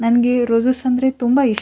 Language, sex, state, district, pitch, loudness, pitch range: Kannada, female, Karnataka, Bijapur, 245 Hz, -16 LUFS, 235-255 Hz